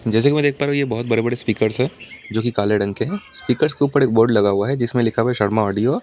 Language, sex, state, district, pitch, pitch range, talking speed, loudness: Hindi, male, Delhi, New Delhi, 120 Hz, 110-140 Hz, 310 wpm, -19 LUFS